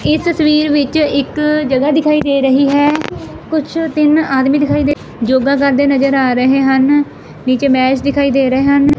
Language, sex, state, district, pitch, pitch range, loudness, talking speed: Punjabi, female, Punjab, Fazilka, 280 Hz, 270-300 Hz, -13 LUFS, 175 wpm